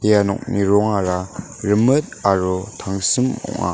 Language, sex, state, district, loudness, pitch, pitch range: Garo, male, Meghalaya, West Garo Hills, -19 LUFS, 100 Hz, 95-110 Hz